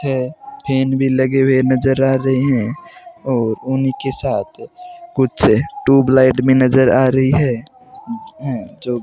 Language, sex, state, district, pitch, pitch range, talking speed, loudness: Hindi, male, Rajasthan, Bikaner, 135 Hz, 130-175 Hz, 145 wpm, -16 LUFS